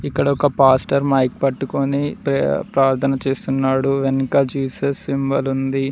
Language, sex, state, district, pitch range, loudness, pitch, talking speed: Telugu, male, Telangana, Mahabubabad, 135-140 Hz, -18 LUFS, 135 Hz, 120 wpm